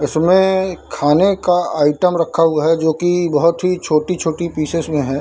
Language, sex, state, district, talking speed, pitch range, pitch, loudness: Hindi, male, Bihar, Darbhanga, 170 wpm, 155-180 Hz, 170 Hz, -16 LUFS